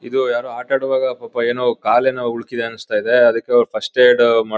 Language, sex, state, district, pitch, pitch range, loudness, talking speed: Kannada, male, Karnataka, Mysore, 120 Hz, 115-125 Hz, -17 LUFS, 170 wpm